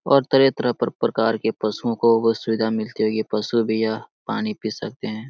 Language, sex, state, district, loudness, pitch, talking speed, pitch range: Hindi, male, Bihar, Lakhisarai, -22 LUFS, 115 Hz, 215 wpm, 110-135 Hz